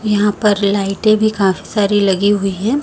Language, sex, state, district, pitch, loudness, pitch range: Hindi, female, Chhattisgarh, Raipur, 205 Hz, -15 LUFS, 195-215 Hz